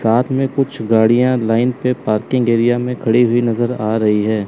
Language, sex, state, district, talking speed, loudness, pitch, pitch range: Hindi, male, Chandigarh, Chandigarh, 200 wpm, -15 LUFS, 120 Hz, 110-125 Hz